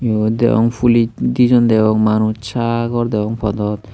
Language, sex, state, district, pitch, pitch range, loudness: Chakma, male, Tripura, Dhalai, 110 Hz, 110-120 Hz, -15 LUFS